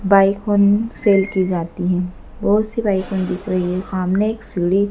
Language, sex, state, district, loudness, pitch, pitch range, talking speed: Hindi, female, Madhya Pradesh, Dhar, -18 LUFS, 195 Hz, 185-205 Hz, 185 wpm